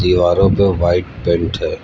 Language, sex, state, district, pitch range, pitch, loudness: Hindi, male, Uttar Pradesh, Lucknow, 90-100 Hz, 90 Hz, -15 LUFS